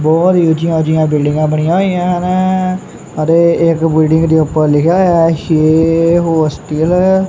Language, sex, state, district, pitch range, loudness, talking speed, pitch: Punjabi, male, Punjab, Kapurthala, 155-175 Hz, -12 LUFS, 150 wpm, 165 Hz